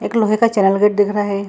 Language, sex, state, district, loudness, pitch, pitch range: Hindi, female, Bihar, Gaya, -15 LUFS, 205 Hz, 200-215 Hz